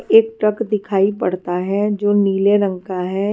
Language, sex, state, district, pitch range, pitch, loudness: Hindi, female, Maharashtra, Washim, 190-210 Hz, 200 Hz, -18 LUFS